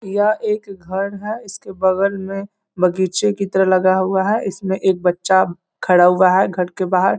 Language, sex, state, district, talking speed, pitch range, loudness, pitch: Hindi, male, Bihar, East Champaran, 185 wpm, 185-200 Hz, -17 LUFS, 190 Hz